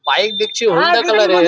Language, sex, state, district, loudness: Bengali, male, West Bengal, Jhargram, -14 LUFS